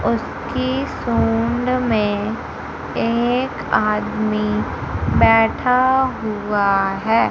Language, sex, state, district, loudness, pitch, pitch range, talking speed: Hindi, female, Madhya Pradesh, Umaria, -19 LUFS, 225 Hz, 210-245 Hz, 65 wpm